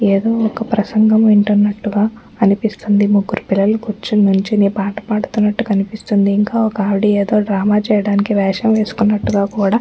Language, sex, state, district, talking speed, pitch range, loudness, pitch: Telugu, female, Andhra Pradesh, Anantapur, 120 wpm, 200-215 Hz, -15 LUFS, 210 Hz